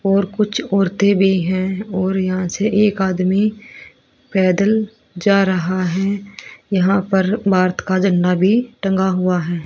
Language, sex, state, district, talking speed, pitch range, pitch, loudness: Hindi, female, Haryana, Rohtak, 145 wpm, 185-205 Hz, 195 Hz, -17 LUFS